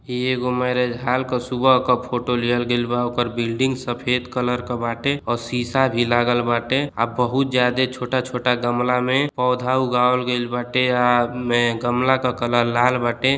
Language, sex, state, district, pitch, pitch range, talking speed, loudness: Bhojpuri, male, Uttar Pradesh, Deoria, 125 Hz, 120-125 Hz, 180 wpm, -20 LUFS